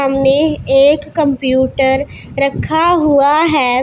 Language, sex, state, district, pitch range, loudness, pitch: Hindi, female, Punjab, Pathankot, 270-305 Hz, -12 LUFS, 280 Hz